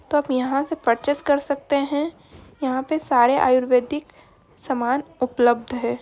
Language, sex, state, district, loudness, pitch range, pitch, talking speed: Hindi, female, Bihar, Darbhanga, -21 LUFS, 250-290 Hz, 270 Hz, 140 wpm